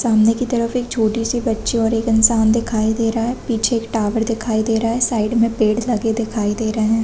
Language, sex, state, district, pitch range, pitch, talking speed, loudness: Hindi, female, Chhattisgarh, Bastar, 220-230 Hz, 225 Hz, 245 wpm, -18 LUFS